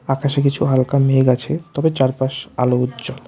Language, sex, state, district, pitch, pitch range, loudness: Bengali, male, West Bengal, Alipurduar, 135 Hz, 130-140 Hz, -18 LUFS